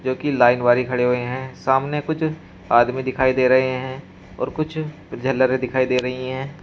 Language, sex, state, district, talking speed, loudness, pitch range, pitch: Hindi, male, Uttar Pradesh, Shamli, 180 wpm, -20 LUFS, 125-135 Hz, 130 Hz